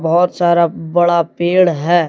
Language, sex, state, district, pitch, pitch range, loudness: Hindi, male, Jharkhand, Deoghar, 175 Hz, 165-175 Hz, -14 LUFS